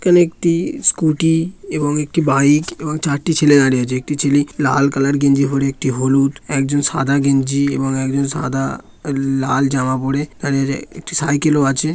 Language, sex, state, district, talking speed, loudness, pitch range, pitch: Bengali, male, West Bengal, Malda, 170 wpm, -16 LUFS, 135-155 Hz, 140 Hz